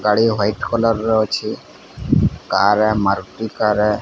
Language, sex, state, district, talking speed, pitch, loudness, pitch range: Odia, male, Odisha, Sambalpur, 120 wpm, 105 Hz, -18 LUFS, 105-110 Hz